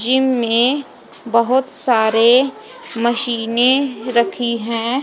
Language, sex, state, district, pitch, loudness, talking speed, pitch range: Hindi, female, Haryana, Jhajjar, 240 Hz, -16 LUFS, 85 wpm, 230-265 Hz